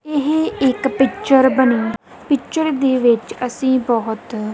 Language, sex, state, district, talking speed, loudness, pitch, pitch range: Punjabi, female, Punjab, Kapurthala, 120 wpm, -17 LUFS, 260 Hz, 235-275 Hz